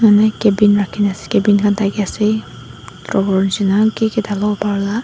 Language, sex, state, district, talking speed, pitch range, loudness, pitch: Nagamese, female, Nagaland, Dimapur, 165 wpm, 200-215 Hz, -15 LUFS, 205 Hz